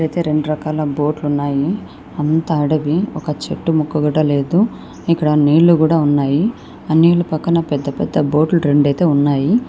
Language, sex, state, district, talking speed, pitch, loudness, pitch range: Telugu, female, Andhra Pradesh, Anantapur, 160 wpm, 155 Hz, -16 LUFS, 145-165 Hz